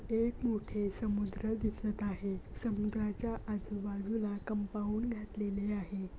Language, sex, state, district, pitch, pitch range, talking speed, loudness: Marathi, female, Maharashtra, Pune, 210 Hz, 205-220 Hz, 95 wpm, -37 LUFS